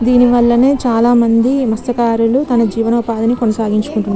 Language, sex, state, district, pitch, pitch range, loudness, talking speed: Telugu, female, Telangana, Nalgonda, 235 Hz, 225-245 Hz, -13 LUFS, 160 wpm